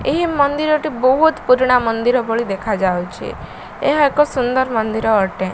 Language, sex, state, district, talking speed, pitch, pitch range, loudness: Odia, female, Odisha, Malkangiri, 140 wpm, 250 Hz, 220-290 Hz, -16 LUFS